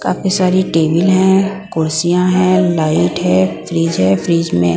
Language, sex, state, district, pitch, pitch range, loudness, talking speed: Hindi, female, Punjab, Pathankot, 170 Hz, 155-185 Hz, -13 LUFS, 150 wpm